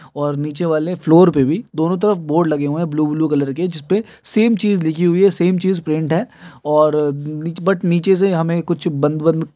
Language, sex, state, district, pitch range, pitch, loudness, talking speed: Hindi, male, Uttar Pradesh, Hamirpur, 150-185 Hz, 165 Hz, -17 LUFS, 220 wpm